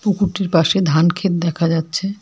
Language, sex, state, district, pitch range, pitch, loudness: Bengali, female, West Bengal, Alipurduar, 165-195 Hz, 175 Hz, -17 LUFS